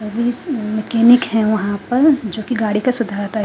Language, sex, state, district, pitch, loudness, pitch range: Hindi, female, Haryana, Charkhi Dadri, 220 Hz, -16 LUFS, 215-245 Hz